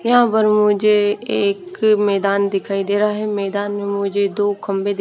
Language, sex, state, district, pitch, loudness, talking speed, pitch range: Hindi, female, Haryana, Rohtak, 205 Hz, -18 LUFS, 180 wpm, 200-210 Hz